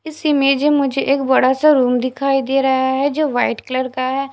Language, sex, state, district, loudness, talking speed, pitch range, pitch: Hindi, female, Punjab, Fazilka, -16 LUFS, 235 wpm, 260-280 Hz, 270 Hz